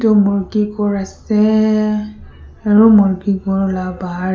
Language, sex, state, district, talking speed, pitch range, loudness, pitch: Nagamese, female, Nagaland, Kohima, 125 wpm, 190-215 Hz, -15 LUFS, 200 Hz